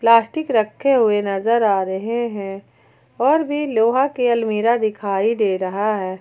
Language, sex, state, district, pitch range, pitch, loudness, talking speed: Hindi, female, Jharkhand, Ranchi, 200-240 Hz, 220 Hz, -19 LUFS, 155 wpm